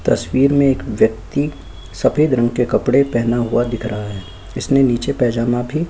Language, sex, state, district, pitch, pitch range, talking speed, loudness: Hindi, male, Chhattisgarh, Kabirdham, 120 Hz, 110-135 Hz, 165 wpm, -17 LUFS